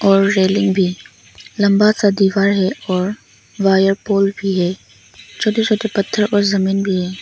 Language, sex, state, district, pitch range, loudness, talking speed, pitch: Hindi, female, Arunachal Pradesh, Longding, 190-205 Hz, -16 LUFS, 160 wpm, 195 Hz